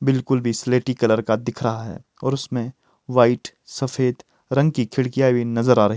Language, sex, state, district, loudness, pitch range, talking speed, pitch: Hindi, male, Himachal Pradesh, Shimla, -21 LUFS, 115-130 Hz, 200 wpm, 125 Hz